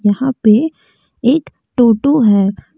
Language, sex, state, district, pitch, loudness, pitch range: Hindi, female, Jharkhand, Deoghar, 240 Hz, -13 LUFS, 210-275 Hz